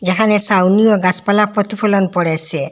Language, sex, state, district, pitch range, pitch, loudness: Bengali, female, Assam, Hailakandi, 185-210 Hz, 200 Hz, -13 LUFS